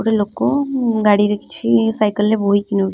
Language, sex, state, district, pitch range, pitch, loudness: Odia, female, Odisha, Khordha, 200-225 Hz, 210 Hz, -17 LUFS